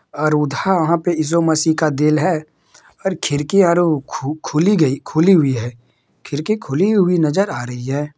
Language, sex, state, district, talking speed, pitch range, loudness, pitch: Hindi, male, Bihar, Madhepura, 175 wpm, 145-180 Hz, -17 LUFS, 155 Hz